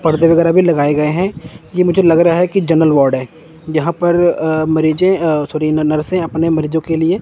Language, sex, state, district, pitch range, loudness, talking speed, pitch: Hindi, male, Chandigarh, Chandigarh, 155-175 Hz, -14 LUFS, 225 wpm, 160 Hz